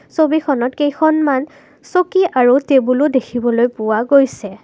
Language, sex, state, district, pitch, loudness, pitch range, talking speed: Assamese, female, Assam, Kamrup Metropolitan, 275 Hz, -15 LUFS, 245-300 Hz, 105 wpm